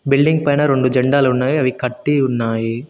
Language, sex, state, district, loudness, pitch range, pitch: Telugu, male, Telangana, Mahabubabad, -16 LUFS, 125-145 Hz, 130 Hz